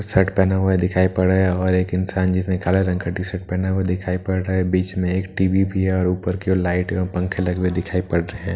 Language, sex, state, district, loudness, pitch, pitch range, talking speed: Hindi, male, Bihar, Katihar, -20 LUFS, 95 Hz, 90-95 Hz, 300 wpm